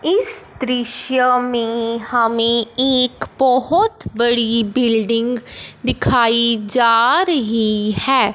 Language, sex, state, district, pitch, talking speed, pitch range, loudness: Hindi, female, Punjab, Fazilka, 240 Hz, 85 wpm, 230-255 Hz, -16 LUFS